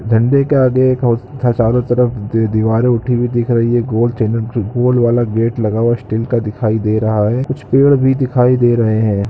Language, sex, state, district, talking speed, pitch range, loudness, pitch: Hindi, male, Chhattisgarh, Korba, 205 wpm, 110-125 Hz, -14 LUFS, 120 Hz